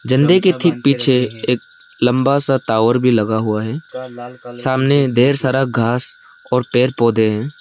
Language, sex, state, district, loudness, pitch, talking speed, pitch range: Hindi, male, Arunachal Pradesh, Lower Dibang Valley, -16 LUFS, 125 Hz, 160 wpm, 120-140 Hz